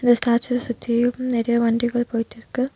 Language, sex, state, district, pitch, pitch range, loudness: Tamil, female, Tamil Nadu, Nilgiris, 240 Hz, 235-245 Hz, -21 LUFS